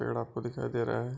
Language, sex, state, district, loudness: Hindi, male, Bihar, Bhagalpur, -34 LUFS